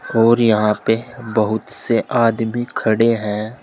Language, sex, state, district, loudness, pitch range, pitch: Hindi, male, Uttar Pradesh, Saharanpur, -17 LUFS, 110-115 Hz, 115 Hz